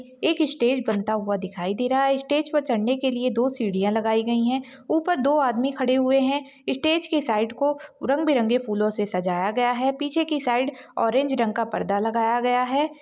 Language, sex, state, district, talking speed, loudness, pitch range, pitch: Kumaoni, female, Uttarakhand, Uttarkashi, 205 wpm, -23 LUFS, 225-280 Hz, 255 Hz